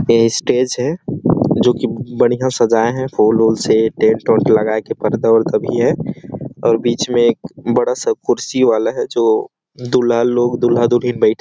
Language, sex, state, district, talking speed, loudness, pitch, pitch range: Hindi, male, Chhattisgarh, Sarguja, 185 wpm, -15 LUFS, 120 Hz, 115-130 Hz